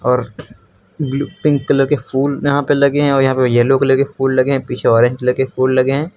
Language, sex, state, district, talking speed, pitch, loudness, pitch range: Hindi, male, Uttar Pradesh, Lucknow, 255 wpm, 135 Hz, -15 LUFS, 125-140 Hz